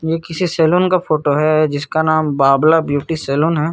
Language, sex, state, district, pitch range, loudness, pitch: Hindi, male, Chhattisgarh, Korba, 145-165 Hz, -15 LUFS, 155 Hz